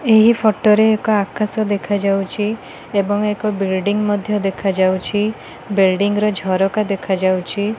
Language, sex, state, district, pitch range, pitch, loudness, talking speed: Odia, female, Odisha, Khordha, 195-215 Hz, 205 Hz, -17 LUFS, 125 wpm